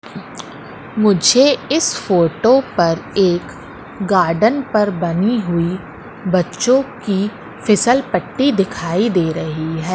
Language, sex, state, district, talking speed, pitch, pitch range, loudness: Hindi, female, Madhya Pradesh, Katni, 100 wpm, 195 Hz, 175-235 Hz, -16 LUFS